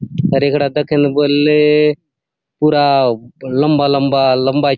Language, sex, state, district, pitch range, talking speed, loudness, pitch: Halbi, male, Chhattisgarh, Bastar, 135-150 Hz, 150 wpm, -13 LUFS, 145 Hz